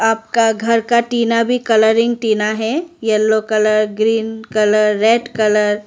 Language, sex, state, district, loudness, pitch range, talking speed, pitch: Hindi, female, Arunachal Pradesh, Lower Dibang Valley, -15 LUFS, 215-230 Hz, 155 wpm, 225 Hz